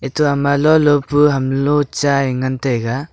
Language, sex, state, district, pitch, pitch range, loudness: Wancho, male, Arunachal Pradesh, Longding, 140 Hz, 130-145 Hz, -15 LUFS